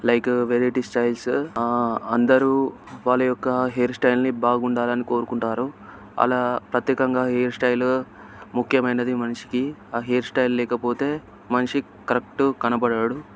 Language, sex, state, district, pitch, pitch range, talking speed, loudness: Telugu, male, Telangana, Nalgonda, 125 Hz, 120-125 Hz, 110 wpm, -22 LUFS